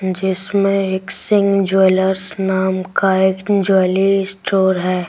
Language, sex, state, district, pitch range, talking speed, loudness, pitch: Hindi, female, Delhi, New Delhi, 190-195 Hz, 120 wpm, -16 LUFS, 190 Hz